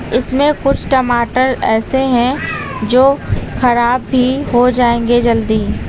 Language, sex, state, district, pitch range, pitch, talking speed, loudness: Hindi, female, Uttar Pradesh, Lucknow, 235-260 Hz, 250 Hz, 110 wpm, -13 LUFS